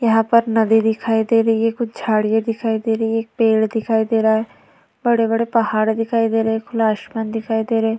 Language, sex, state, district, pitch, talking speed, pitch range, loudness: Hindi, female, Uttar Pradesh, Varanasi, 225 Hz, 225 wpm, 220-225 Hz, -18 LUFS